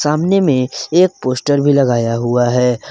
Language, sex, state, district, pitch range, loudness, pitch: Hindi, male, Jharkhand, Garhwa, 125-150 Hz, -14 LUFS, 130 Hz